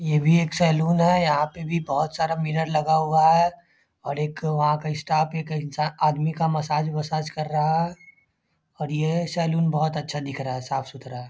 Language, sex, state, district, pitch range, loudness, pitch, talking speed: Hindi, male, Bihar, Lakhisarai, 150-160 Hz, -23 LUFS, 155 Hz, 205 wpm